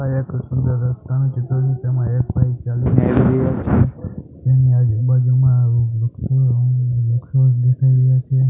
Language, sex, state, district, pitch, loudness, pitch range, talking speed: Gujarati, male, Gujarat, Gandhinagar, 125 Hz, -17 LUFS, 125-130 Hz, 120 wpm